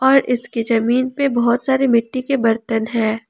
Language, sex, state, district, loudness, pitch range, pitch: Hindi, female, Jharkhand, Palamu, -18 LUFS, 230-260 Hz, 240 Hz